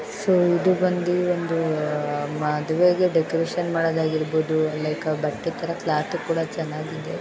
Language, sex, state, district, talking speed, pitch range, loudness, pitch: Kannada, female, Karnataka, Raichur, 115 wpm, 155-175 Hz, -23 LUFS, 165 Hz